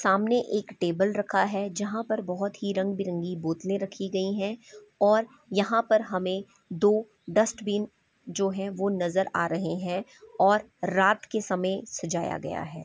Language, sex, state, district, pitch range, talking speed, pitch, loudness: Hindi, female, Chhattisgarh, Bastar, 190-210 Hz, 160 wpm, 200 Hz, -27 LUFS